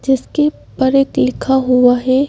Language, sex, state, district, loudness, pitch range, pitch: Hindi, female, Madhya Pradesh, Bhopal, -14 LUFS, 255-275 Hz, 265 Hz